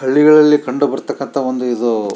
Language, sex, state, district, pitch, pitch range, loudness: Kannada, male, Karnataka, Shimoga, 130 Hz, 120-150 Hz, -14 LUFS